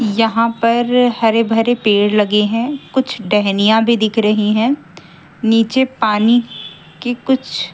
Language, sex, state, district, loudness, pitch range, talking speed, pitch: Hindi, female, Haryana, Jhajjar, -15 LUFS, 210-240 Hz, 130 wpm, 225 Hz